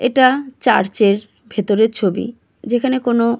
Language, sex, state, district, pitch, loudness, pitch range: Bengali, female, West Bengal, Kolkata, 235 Hz, -17 LUFS, 210-255 Hz